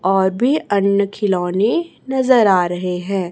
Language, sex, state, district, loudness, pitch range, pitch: Hindi, female, Chhattisgarh, Raipur, -17 LUFS, 185-245 Hz, 200 Hz